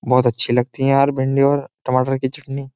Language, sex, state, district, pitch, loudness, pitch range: Hindi, male, Uttar Pradesh, Jyotiba Phule Nagar, 135 Hz, -18 LUFS, 130-140 Hz